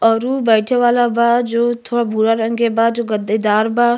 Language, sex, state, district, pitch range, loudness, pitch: Bhojpuri, female, Uttar Pradesh, Gorakhpur, 225-240 Hz, -16 LUFS, 235 Hz